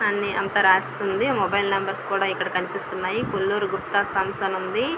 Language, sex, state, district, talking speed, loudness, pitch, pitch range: Telugu, female, Andhra Pradesh, Visakhapatnam, 180 wpm, -23 LUFS, 195 Hz, 190-200 Hz